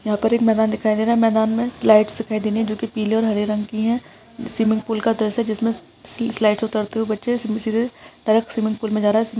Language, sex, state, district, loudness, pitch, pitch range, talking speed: Hindi, male, Bihar, Gaya, -20 LUFS, 220 Hz, 215-230 Hz, 250 wpm